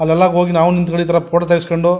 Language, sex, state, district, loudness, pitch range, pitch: Kannada, male, Karnataka, Mysore, -14 LUFS, 170-175 Hz, 170 Hz